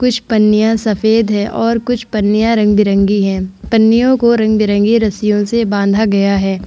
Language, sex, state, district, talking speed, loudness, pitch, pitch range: Hindi, female, Bihar, Vaishali, 160 wpm, -13 LUFS, 215 Hz, 205-225 Hz